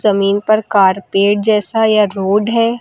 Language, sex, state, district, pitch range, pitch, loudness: Hindi, female, Uttar Pradesh, Lucknow, 195-215 Hz, 205 Hz, -13 LUFS